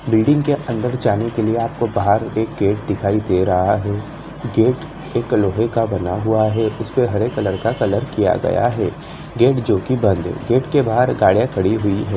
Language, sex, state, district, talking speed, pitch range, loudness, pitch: Hindi, female, Jharkhand, Jamtara, 205 wpm, 100-125 Hz, -18 LUFS, 110 Hz